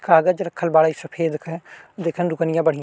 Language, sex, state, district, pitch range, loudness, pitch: Bhojpuri, male, Uttar Pradesh, Deoria, 160-170 Hz, -21 LUFS, 165 Hz